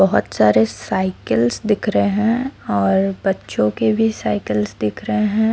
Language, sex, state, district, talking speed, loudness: Hindi, female, Odisha, Sambalpur, 150 wpm, -18 LUFS